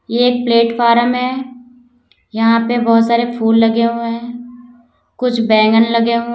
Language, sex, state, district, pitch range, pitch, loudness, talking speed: Hindi, female, Uttar Pradesh, Lalitpur, 230-245 Hz, 235 Hz, -14 LUFS, 150 wpm